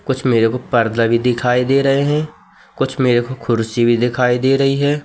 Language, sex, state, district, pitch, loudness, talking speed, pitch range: Hindi, male, Madhya Pradesh, Katni, 125 Hz, -16 LUFS, 215 wpm, 120-135 Hz